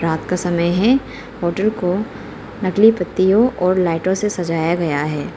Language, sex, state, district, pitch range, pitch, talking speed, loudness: Hindi, female, Arunachal Pradesh, Lower Dibang Valley, 170-210 Hz, 180 Hz, 155 wpm, -17 LUFS